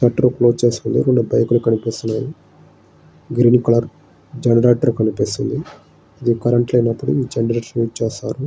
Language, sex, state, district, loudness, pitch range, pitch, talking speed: Telugu, male, Andhra Pradesh, Srikakulam, -17 LUFS, 115-125 Hz, 120 Hz, 120 wpm